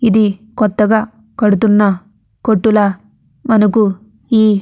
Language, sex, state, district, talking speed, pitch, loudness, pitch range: Telugu, female, Andhra Pradesh, Anantapur, 80 wpm, 215 Hz, -13 LUFS, 205-220 Hz